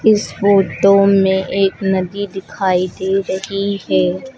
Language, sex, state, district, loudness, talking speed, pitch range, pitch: Hindi, female, Uttar Pradesh, Lucknow, -16 LUFS, 125 wpm, 190-200 Hz, 195 Hz